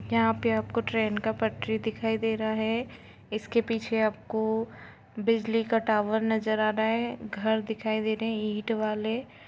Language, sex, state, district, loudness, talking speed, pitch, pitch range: Hindi, female, Jharkhand, Jamtara, -28 LUFS, 170 wpm, 220 Hz, 220-225 Hz